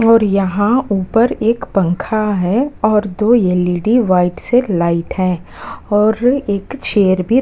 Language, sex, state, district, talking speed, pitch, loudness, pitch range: Hindi, female, Uttarakhand, Tehri Garhwal, 135 wpm, 205 Hz, -15 LUFS, 185-230 Hz